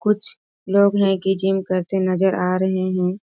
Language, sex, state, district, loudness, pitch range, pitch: Hindi, female, Bihar, Sitamarhi, -20 LUFS, 185-195 Hz, 190 Hz